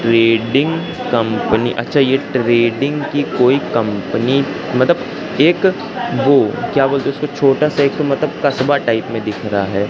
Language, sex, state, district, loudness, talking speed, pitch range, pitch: Hindi, male, Madhya Pradesh, Katni, -15 LUFS, 145 wpm, 115-140 Hz, 130 Hz